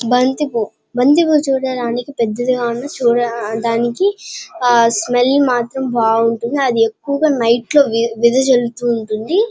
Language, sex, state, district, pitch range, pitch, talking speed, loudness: Telugu, female, Andhra Pradesh, Chittoor, 230-270 Hz, 245 Hz, 105 wpm, -15 LUFS